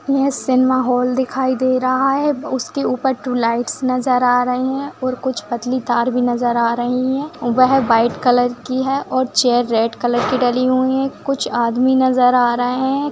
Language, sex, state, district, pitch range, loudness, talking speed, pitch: Hindi, female, Bihar, Madhepura, 245-260 Hz, -17 LUFS, 195 wpm, 255 Hz